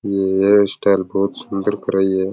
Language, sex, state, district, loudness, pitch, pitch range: Rajasthani, male, Rajasthan, Nagaur, -17 LUFS, 100 Hz, 95-100 Hz